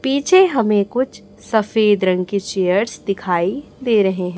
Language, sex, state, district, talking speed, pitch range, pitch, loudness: Hindi, female, Chhattisgarh, Raipur, 150 wpm, 185-240 Hz, 205 Hz, -17 LUFS